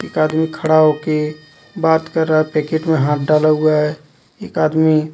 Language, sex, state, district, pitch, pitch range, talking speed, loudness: Hindi, male, Jharkhand, Deoghar, 155 Hz, 155-160 Hz, 185 wpm, -16 LUFS